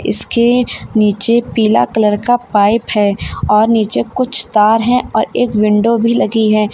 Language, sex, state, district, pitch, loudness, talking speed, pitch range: Hindi, female, Uttar Pradesh, Lalitpur, 220 Hz, -13 LUFS, 160 wpm, 210-235 Hz